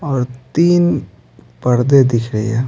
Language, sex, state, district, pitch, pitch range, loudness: Hindi, male, Bihar, Patna, 125 Hz, 110-140 Hz, -15 LUFS